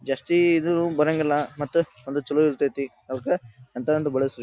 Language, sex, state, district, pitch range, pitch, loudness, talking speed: Kannada, male, Karnataka, Dharwad, 135-155 Hz, 145 Hz, -24 LUFS, 135 wpm